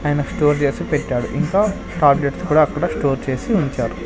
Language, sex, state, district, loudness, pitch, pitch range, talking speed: Telugu, male, Andhra Pradesh, Sri Satya Sai, -18 LUFS, 145 Hz, 140-155 Hz, 160 wpm